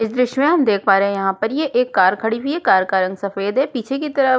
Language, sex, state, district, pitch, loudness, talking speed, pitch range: Hindi, female, Uttarakhand, Tehri Garhwal, 225 Hz, -18 LUFS, 300 wpm, 195-270 Hz